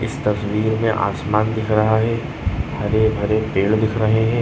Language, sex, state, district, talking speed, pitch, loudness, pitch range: Bhojpuri, male, Uttar Pradesh, Gorakhpur, 175 wpm, 110 Hz, -19 LUFS, 105-110 Hz